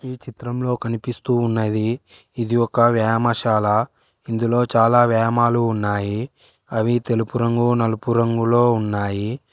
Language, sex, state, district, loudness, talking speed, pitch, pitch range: Telugu, male, Telangana, Hyderabad, -19 LUFS, 100 wpm, 115 Hz, 110-120 Hz